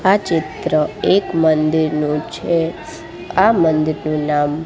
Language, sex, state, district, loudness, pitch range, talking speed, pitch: Gujarati, female, Gujarat, Gandhinagar, -17 LUFS, 150-165 Hz, 105 wpm, 155 Hz